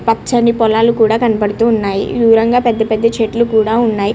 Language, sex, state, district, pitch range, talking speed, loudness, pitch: Telugu, female, Andhra Pradesh, Srikakulam, 220-230 Hz, 145 wpm, -13 LUFS, 225 Hz